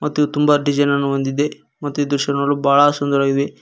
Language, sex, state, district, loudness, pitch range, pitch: Kannada, male, Karnataka, Koppal, -17 LUFS, 140-145 Hz, 145 Hz